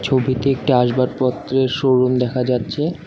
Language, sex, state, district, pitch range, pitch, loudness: Bengali, male, West Bengal, Alipurduar, 125-135 Hz, 130 Hz, -18 LUFS